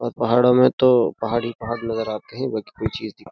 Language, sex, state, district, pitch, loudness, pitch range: Hindi, male, Uttar Pradesh, Jyotiba Phule Nagar, 120 Hz, -20 LUFS, 115-125 Hz